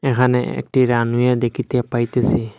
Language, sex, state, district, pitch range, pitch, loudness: Bengali, male, Assam, Hailakandi, 120-125 Hz, 125 Hz, -18 LUFS